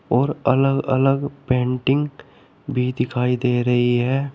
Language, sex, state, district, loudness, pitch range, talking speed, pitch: Hindi, male, Uttar Pradesh, Shamli, -20 LUFS, 125-135 Hz, 125 wpm, 130 Hz